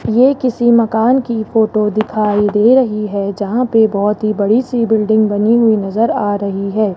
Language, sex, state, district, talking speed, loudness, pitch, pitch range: Hindi, male, Rajasthan, Jaipur, 190 wpm, -14 LUFS, 215 Hz, 205-230 Hz